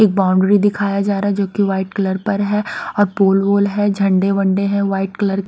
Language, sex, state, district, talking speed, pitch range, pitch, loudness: Hindi, female, Haryana, Rohtak, 230 wpm, 195-205 Hz, 200 Hz, -16 LUFS